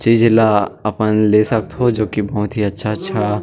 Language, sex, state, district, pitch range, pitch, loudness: Chhattisgarhi, male, Chhattisgarh, Sarguja, 105-115 Hz, 105 Hz, -16 LUFS